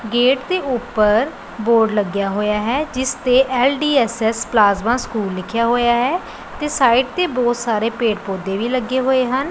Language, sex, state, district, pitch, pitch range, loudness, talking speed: Punjabi, female, Punjab, Pathankot, 240 Hz, 215-260 Hz, -18 LUFS, 165 wpm